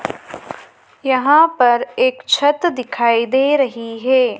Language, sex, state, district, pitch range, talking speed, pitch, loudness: Hindi, female, Madhya Pradesh, Dhar, 240-295 Hz, 110 wpm, 260 Hz, -15 LUFS